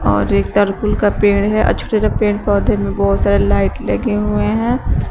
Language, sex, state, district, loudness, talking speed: Hindi, female, Uttar Pradesh, Shamli, -15 LUFS, 210 wpm